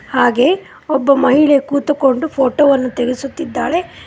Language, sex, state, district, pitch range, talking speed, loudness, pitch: Kannada, female, Karnataka, Koppal, 255-295 Hz, 105 wpm, -14 LUFS, 275 Hz